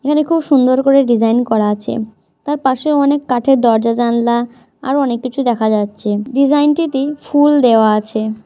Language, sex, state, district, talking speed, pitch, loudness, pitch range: Bengali, female, West Bengal, Jhargram, 165 wpm, 250 Hz, -14 LUFS, 225-280 Hz